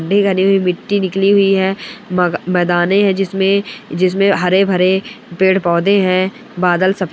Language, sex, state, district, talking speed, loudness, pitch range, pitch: Hindi, female, Bihar, Gaya, 120 wpm, -14 LUFS, 185-200 Hz, 190 Hz